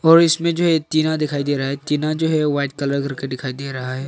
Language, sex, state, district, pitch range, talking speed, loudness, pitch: Hindi, male, Arunachal Pradesh, Longding, 140-160 Hz, 295 wpm, -19 LUFS, 145 Hz